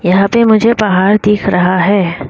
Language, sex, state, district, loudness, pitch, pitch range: Hindi, female, Arunachal Pradesh, Lower Dibang Valley, -11 LUFS, 200 Hz, 185-210 Hz